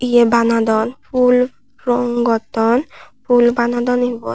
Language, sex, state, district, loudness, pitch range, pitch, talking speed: Chakma, male, Tripura, Unakoti, -16 LUFS, 235-250 Hz, 240 Hz, 110 wpm